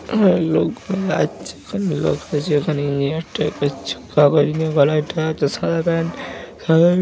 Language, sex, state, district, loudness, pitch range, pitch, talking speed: Bengali, male, West Bengal, North 24 Parganas, -19 LUFS, 145-165 Hz, 155 Hz, 75 wpm